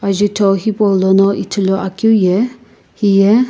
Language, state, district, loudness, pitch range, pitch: Sumi, Nagaland, Kohima, -13 LUFS, 195-215 Hz, 200 Hz